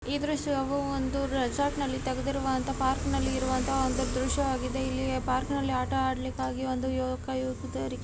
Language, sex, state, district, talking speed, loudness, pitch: Kannada, female, Karnataka, Gulbarga, 135 wpm, -30 LUFS, 260 Hz